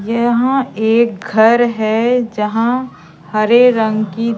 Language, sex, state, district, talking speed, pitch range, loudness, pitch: Hindi, female, Madhya Pradesh, Katni, 110 wpm, 215-240 Hz, -14 LUFS, 225 Hz